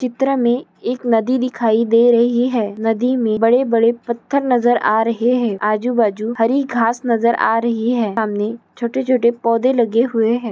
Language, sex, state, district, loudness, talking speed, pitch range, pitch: Hindi, female, Chhattisgarh, Bilaspur, -17 LUFS, 175 wpm, 225-245 Hz, 235 Hz